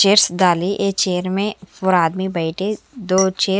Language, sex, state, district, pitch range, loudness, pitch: Hindi, female, Haryana, Charkhi Dadri, 185-200 Hz, -18 LUFS, 190 Hz